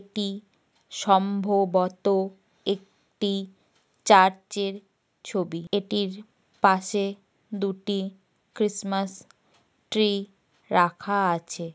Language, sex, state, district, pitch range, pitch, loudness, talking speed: Bengali, female, West Bengal, North 24 Parganas, 190-200 Hz, 195 Hz, -25 LUFS, 65 wpm